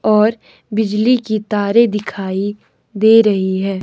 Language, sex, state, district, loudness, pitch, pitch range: Hindi, male, Himachal Pradesh, Shimla, -15 LUFS, 210 Hz, 200-220 Hz